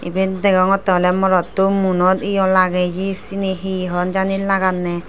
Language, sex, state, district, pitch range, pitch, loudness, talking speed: Chakma, female, Tripura, Dhalai, 180-195 Hz, 190 Hz, -17 LUFS, 155 wpm